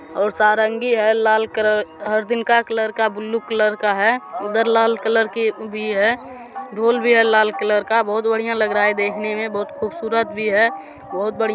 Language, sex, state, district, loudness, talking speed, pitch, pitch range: Hindi, male, Bihar, Supaul, -18 LUFS, 210 wpm, 220 Hz, 210-225 Hz